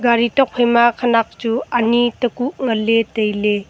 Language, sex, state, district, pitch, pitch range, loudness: Wancho, female, Arunachal Pradesh, Longding, 235 Hz, 225-240 Hz, -17 LUFS